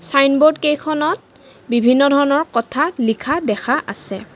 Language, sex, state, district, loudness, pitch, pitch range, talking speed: Assamese, female, Assam, Kamrup Metropolitan, -17 LUFS, 280 Hz, 235-305 Hz, 110 wpm